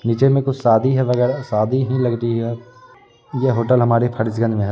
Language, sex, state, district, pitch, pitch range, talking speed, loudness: Hindi, male, Bihar, Araria, 120 Hz, 115-130 Hz, 215 wpm, -18 LUFS